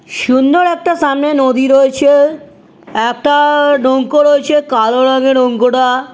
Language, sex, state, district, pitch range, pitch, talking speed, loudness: Bengali, female, West Bengal, North 24 Parganas, 255-295 Hz, 270 Hz, 105 wpm, -11 LUFS